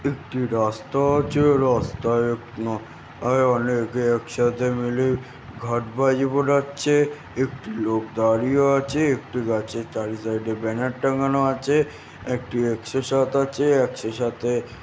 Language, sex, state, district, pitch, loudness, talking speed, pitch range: Bengali, male, West Bengal, North 24 Parganas, 125 Hz, -23 LUFS, 130 wpm, 115-135 Hz